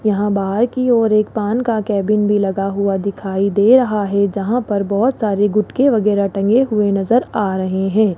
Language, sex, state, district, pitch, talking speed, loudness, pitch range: Hindi, male, Rajasthan, Jaipur, 205 Hz, 200 wpm, -16 LUFS, 200-220 Hz